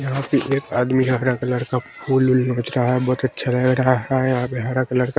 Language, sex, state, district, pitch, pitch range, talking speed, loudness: Hindi, male, Haryana, Rohtak, 130 Hz, 125-130 Hz, 265 wpm, -20 LUFS